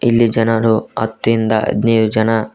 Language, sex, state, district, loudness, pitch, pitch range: Kannada, male, Karnataka, Koppal, -15 LUFS, 110 Hz, 110-115 Hz